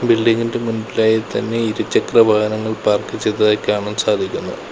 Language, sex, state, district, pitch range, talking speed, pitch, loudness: Malayalam, male, Kerala, Kollam, 105-115 Hz, 115 wpm, 110 Hz, -17 LUFS